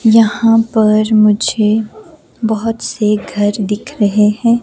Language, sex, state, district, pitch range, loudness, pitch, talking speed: Hindi, female, Himachal Pradesh, Shimla, 210-225 Hz, -13 LUFS, 220 Hz, 115 wpm